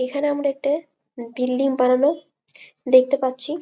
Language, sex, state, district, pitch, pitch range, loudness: Bengali, female, West Bengal, Malda, 275 Hz, 255-290 Hz, -20 LUFS